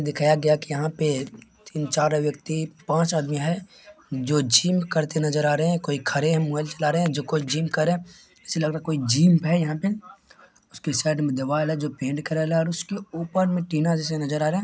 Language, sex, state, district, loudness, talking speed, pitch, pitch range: Maithili, male, Bihar, Supaul, -24 LUFS, 240 wpm, 155 Hz, 150-165 Hz